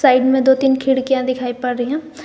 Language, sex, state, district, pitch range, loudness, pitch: Hindi, female, Jharkhand, Garhwa, 255-270 Hz, -16 LUFS, 265 Hz